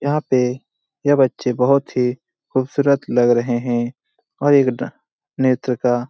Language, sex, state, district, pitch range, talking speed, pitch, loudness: Hindi, male, Bihar, Lakhisarai, 125-140 Hz, 160 wpm, 130 Hz, -18 LUFS